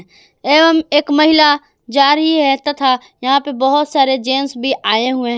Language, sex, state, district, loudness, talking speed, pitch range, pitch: Hindi, female, Jharkhand, Palamu, -13 LUFS, 180 wpm, 265-295 Hz, 280 Hz